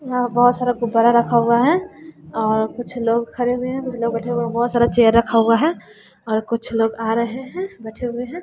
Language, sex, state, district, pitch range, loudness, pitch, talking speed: Hindi, female, Bihar, West Champaran, 230-250 Hz, -19 LUFS, 235 Hz, 235 wpm